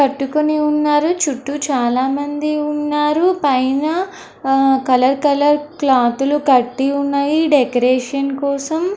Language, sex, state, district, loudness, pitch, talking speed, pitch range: Telugu, female, Andhra Pradesh, Anantapur, -16 LUFS, 280 Hz, 100 wpm, 270-300 Hz